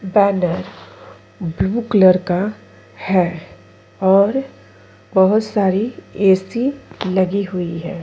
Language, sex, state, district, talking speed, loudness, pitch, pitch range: Hindi, female, Chhattisgarh, Korba, 90 wpm, -17 LUFS, 190 Hz, 180-205 Hz